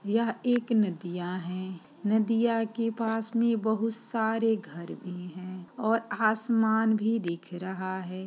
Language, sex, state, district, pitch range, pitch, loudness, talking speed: Hindi, female, Bihar, Saran, 185-225 Hz, 220 Hz, -29 LUFS, 140 wpm